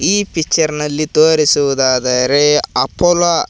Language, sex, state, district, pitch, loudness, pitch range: Kannada, male, Karnataka, Koppal, 150 Hz, -13 LUFS, 145-160 Hz